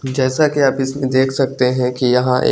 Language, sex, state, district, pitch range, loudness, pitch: Hindi, male, Chandigarh, Chandigarh, 125-135 Hz, -16 LUFS, 130 Hz